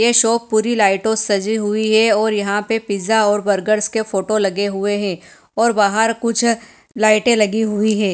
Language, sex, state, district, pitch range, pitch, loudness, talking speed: Hindi, female, Punjab, Fazilka, 205-225 Hz, 215 Hz, -16 LUFS, 190 wpm